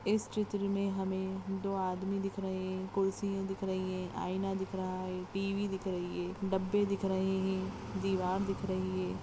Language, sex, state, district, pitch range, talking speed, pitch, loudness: Hindi, female, Maharashtra, Aurangabad, 185-195 Hz, 190 wpm, 190 Hz, -35 LUFS